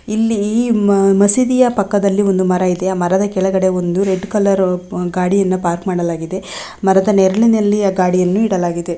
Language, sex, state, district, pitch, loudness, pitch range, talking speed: Kannada, female, Karnataka, Belgaum, 190 Hz, -15 LUFS, 185-205 Hz, 140 wpm